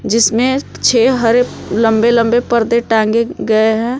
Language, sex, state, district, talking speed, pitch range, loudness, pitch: Hindi, female, Jharkhand, Palamu, 135 wpm, 225-240 Hz, -13 LUFS, 230 Hz